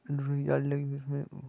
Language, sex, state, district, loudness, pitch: Hindi, male, Jharkhand, Sahebganj, -32 LUFS, 140 Hz